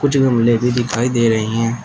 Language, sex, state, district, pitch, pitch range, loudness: Hindi, male, Uttar Pradesh, Shamli, 120 Hz, 115-125 Hz, -16 LUFS